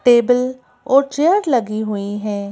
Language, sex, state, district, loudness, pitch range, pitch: Hindi, female, Madhya Pradesh, Bhopal, -17 LUFS, 210-265 Hz, 245 Hz